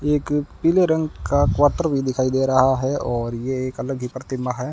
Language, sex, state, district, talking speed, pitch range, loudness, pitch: Hindi, male, Rajasthan, Bikaner, 215 wpm, 130-145 Hz, -21 LUFS, 130 Hz